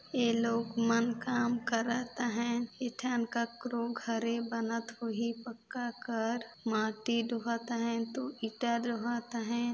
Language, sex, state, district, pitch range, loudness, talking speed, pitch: Chhattisgarhi, female, Chhattisgarh, Balrampur, 230-240 Hz, -34 LUFS, 125 wpm, 235 Hz